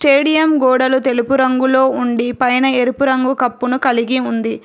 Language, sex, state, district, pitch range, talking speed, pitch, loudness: Telugu, female, Telangana, Hyderabad, 250-265 Hz, 140 wpm, 255 Hz, -14 LUFS